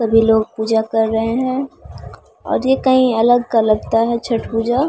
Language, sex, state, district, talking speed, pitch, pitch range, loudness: Maithili, female, Bihar, Samastipur, 195 wpm, 230 Hz, 225-250 Hz, -16 LUFS